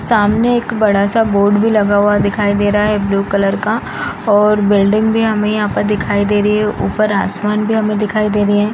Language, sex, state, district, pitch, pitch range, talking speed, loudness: Hindi, female, Bihar, East Champaran, 210 Hz, 205-215 Hz, 225 wpm, -14 LUFS